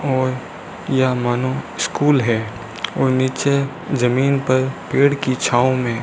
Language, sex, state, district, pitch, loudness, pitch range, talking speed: Hindi, male, Rajasthan, Bikaner, 130 Hz, -18 LUFS, 125-135 Hz, 140 wpm